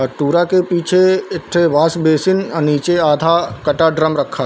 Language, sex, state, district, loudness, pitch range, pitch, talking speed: Chhattisgarhi, male, Chhattisgarh, Bilaspur, -14 LUFS, 150-175 Hz, 165 Hz, 200 wpm